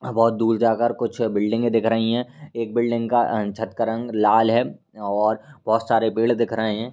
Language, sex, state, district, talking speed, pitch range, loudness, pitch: Hindi, male, Bihar, Lakhisarai, 210 wpm, 110-120 Hz, -21 LUFS, 115 Hz